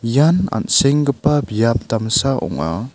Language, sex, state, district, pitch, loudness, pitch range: Garo, male, Meghalaya, South Garo Hills, 135 Hz, -17 LUFS, 115-145 Hz